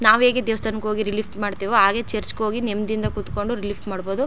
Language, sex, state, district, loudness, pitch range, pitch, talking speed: Kannada, female, Karnataka, Chamarajanagar, -22 LUFS, 205-225 Hz, 215 Hz, 210 wpm